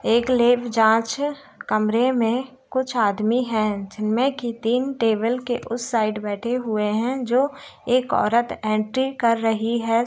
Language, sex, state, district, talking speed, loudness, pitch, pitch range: Hindi, female, Bihar, Gopalganj, 155 wpm, -22 LUFS, 235 Hz, 220-255 Hz